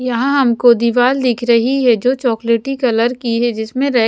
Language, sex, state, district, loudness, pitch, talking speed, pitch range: Hindi, female, Haryana, Jhajjar, -14 LUFS, 245 Hz, 205 wpm, 235-255 Hz